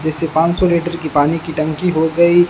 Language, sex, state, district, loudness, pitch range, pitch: Hindi, male, Rajasthan, Bikaner, -16 LUFS, 155-170 Hz, 165 Hz